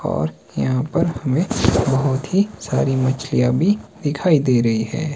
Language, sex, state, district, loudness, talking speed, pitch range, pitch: Hindi, male, Himachal Pradesh, Shimla, -19 LUFS, 150 wpm, 115-150 Hz, 130 Hz